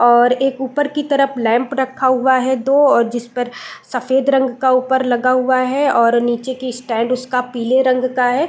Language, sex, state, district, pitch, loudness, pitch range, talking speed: Hindi, female, Chhattisgarh, Raigarh, 255 Hz, -16 LUFS, 245-265 Hz, 200 wpm